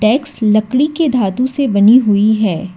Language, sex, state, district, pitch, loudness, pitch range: Hindi, female, Karnataka, Bangalore, 225 Hz, -13 LUFS, 210-260 Hz